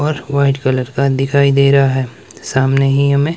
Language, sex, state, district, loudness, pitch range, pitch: Hindi, male, Himachal Pradesh, Shimla, -14 LUFS, 135-140 Hz, 140 Hz